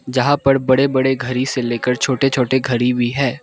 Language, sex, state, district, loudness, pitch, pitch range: Hindi, male, Arunachal Pradesh, Lower Dibang Valley, -17 LUFS, 130 Hz, 125-135 Hz